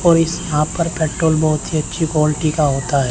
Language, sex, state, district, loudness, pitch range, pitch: Hindi, male, Chandigarh, Chandigarh, -17 LUFS, 150-165 Hz, 155 Hz